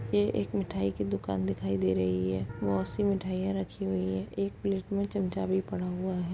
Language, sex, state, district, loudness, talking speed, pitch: Hindi, female, Uttar Pradesh, Etah, -31 LUFS, 210 wpm, 100 Hz